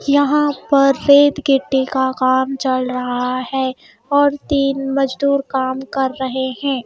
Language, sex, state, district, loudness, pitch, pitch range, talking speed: Hindi, female, Madhya Pradesh, Bhopal, -17 LUFS, 270 Hz, 260-280 Hz, 130 wpm